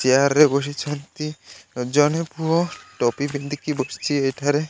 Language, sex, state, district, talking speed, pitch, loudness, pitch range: Odia, male, Odisha, Malkangiri, 115 wpm, 145 Hz, -22 LUFS, 135-150 Hz